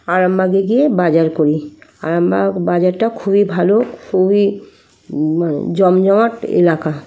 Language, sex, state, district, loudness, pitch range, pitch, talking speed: Bengali, female, West Bengal, Kolkata, -15 LUFS, 165-200 Hz, 185 Hz, 100 wpm